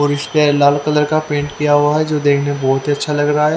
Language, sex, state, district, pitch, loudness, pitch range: Hindi, male, Haryana, Charkhi Dadri, 145 Hz, -15 LUFS, 145-150 Hz